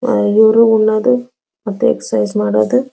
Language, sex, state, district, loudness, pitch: Kannada, female, Karnataka, Belgaum, -13 LUFS, 220 Hz